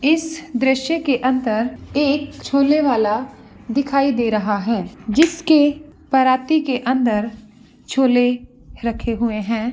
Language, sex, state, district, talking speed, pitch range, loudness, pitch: Hindi, female, Bihar, Begusarai, 115 wpm, 230-285 Hz, -18 LUFS, 260 Hz